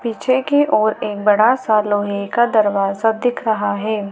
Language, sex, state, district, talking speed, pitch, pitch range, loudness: Hindi, female, Madhya Pradesh, Dhar, 175 wpm, 215 Hz, 205-240 Hz, -17 LUFS